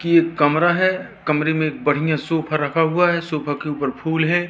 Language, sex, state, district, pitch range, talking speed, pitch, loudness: Hindi, male, Madhya Pradesh, Katni, 150-170 Hz, 215 wpm, 160 Hz, -19 LUFS